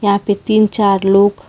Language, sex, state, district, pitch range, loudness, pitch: Hindi, female, Karnataka, Bangalore, 200-210 Hz, -13 LUFS, 200 Hz